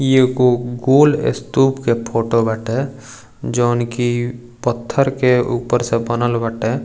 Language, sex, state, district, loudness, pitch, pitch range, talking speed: Bhojpuri, male, Bihar, East Champaran, -17 LUFS, 120 Hz, 115-130 Hz, 130 wpm